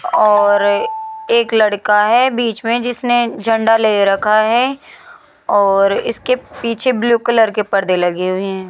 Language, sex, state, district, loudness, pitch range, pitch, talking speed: Hindi, female, Rajasthan, Jaipur, -14 LUFS, 205-240 Hz, 225 Hz, 145 wpm